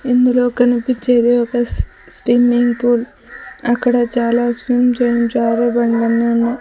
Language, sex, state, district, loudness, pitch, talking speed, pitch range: Telugu, female, Andhra Pradesh, Sri Satya Sai, -15 LUFS, 240 Hz, 100 wpm, 235-245 Hz